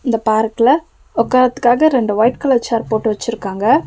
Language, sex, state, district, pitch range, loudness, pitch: Tamil, female, Tamil Nadu, Nilgiris, 220-255 Hz, -15 LUFS, 230 Hz